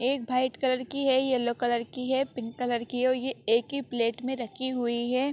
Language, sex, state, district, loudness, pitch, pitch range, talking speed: Hindi, female, Jharkhand, Sahebganj, -28 LUFS, 255 Hz, 240-260 Hz, 235 wpm